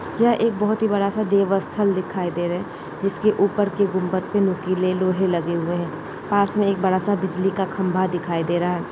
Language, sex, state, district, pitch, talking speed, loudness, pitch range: Kumaoni, female, Uttarakhand, Uttarkashi, 190 Hz, 220 wpm, -22 LUFS, 185-200 Hz